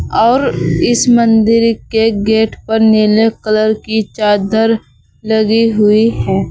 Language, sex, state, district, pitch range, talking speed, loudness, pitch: Hindi, female, Uttar Pradesh, Saharanpur, 215-225 Hz, 120 wpm, -12 LUFS, 220 Hz